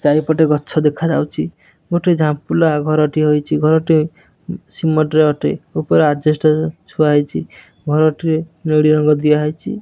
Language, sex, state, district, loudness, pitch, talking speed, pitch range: Odia, male, Odisha, Nuapada, -16 LUFS, 155 Hz, 130 wpm, 150-160 Hz